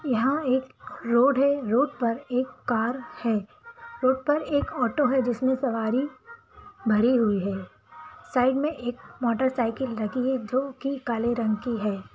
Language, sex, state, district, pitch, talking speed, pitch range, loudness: Bhojpuri, female, Bihar, Saran, 255 Hz, 160 wpm, 235-285 Hz, -26 LUFS